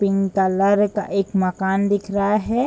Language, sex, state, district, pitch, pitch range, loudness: Hindi, female, Bihar, Bhagalpur, 200 Hz, 195-205 Hz, -20 LUFS